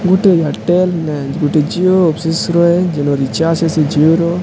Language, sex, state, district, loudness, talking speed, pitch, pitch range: Odia, male, Odisha, Sambalpur, -13 LUFS, 175 wpm, 165 Hz, 150-175 Hz